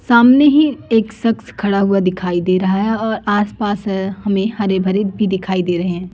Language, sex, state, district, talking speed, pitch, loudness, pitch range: Hindi, female, Chhattisgarh, Raipur, 175 wpm, 200 Hz, -16 LUFS, 190-220 Hz